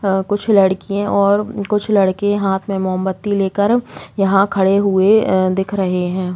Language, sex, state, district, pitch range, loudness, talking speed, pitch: Hindi, female, Uttar Pradesh, Muzaffarnagar, 190-205 Hz, -16 LUFS, 160 wpm, 195 Hz